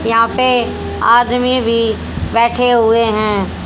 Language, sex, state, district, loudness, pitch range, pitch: Hindi, female, Haryana, Jhajjar, -13 LUFS, 225-245 Hz, 230 Hz